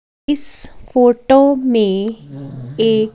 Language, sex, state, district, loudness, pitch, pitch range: Hindi, female, Chandigarh, Chandigarh, -15 LUFS, 225 Hz, 195-265 Hz